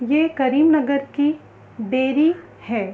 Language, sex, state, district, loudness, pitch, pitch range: Hindi, female, Uttar Pradesh, Hamirpur, -19 LUFS, 280 Hz, 260-305 Hz